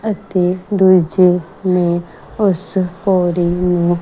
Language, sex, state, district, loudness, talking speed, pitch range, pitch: Punjabi, female, Punjab, Kapurthala, -15 LUFS, 90 wpm, 175-190 Hz, 180 Hz